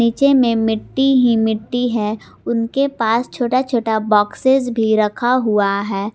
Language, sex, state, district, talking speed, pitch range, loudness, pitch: Hindi, female, Jharkhand, Garhwa, 145 wpm, 215-250 Hz, -17 LUFS, 230 Hz